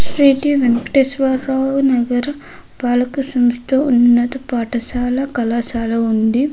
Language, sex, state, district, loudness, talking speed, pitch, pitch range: Telugu, female, Andhra Pradesh, Krishna, -16 LUFS, 75 wpm, 250 Hz, 240-270 Hz